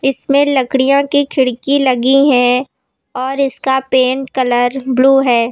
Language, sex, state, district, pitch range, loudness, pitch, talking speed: Hindi, female, Uttar Pradesh, Lucknow, 255-275 Hz, -13 LUFS, 265 Hz, 130 wpm